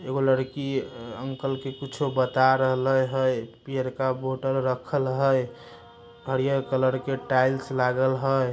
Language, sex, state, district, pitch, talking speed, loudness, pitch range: Magahi, male, Bihar, Samastipur, 130 Hz, 125 wpm, -25 LUFS, 130-135 Hz